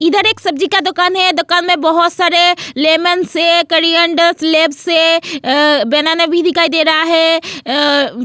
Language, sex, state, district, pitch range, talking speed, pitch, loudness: Hindi, female, Goa, North and South Goa, 315-350 Hz, 175 wpm, 335 Hz, -11 LUFS